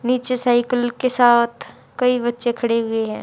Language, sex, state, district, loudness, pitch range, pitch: Hindi, female, Haryana, Charkhi Dadri, -18 LUFS, 235-250 Hz, 240 Hz